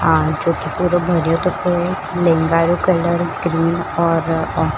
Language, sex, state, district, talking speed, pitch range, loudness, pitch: Marwari, female, Rajasthan, Churu, 140 wpm, 165-175 Hz, -17 LUFS, 170 Hz